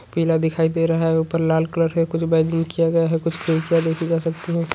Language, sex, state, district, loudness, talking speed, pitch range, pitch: Hindi, male, Uttarakhand, Uttarkashi, -20 LUFS, 215 wpm, 160-165 Hz, 165 Hz